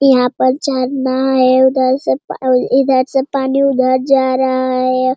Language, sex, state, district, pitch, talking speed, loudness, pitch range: Hindi, female, Bihar, Jamui, 260 Hz, 160 wpm, -14 LUFS, 255-265 Hz